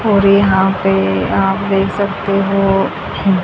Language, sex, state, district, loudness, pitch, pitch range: Hindi, female, Haryana, Charkhi Dadri, -14 LUFS, 195 Hz, 195-200 Hz